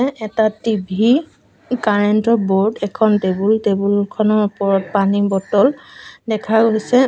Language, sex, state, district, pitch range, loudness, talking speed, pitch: Assamese, female, Assam, Sonitpur, 200-225 Hz, -16 LUFS, 110 wpm, 215 Hz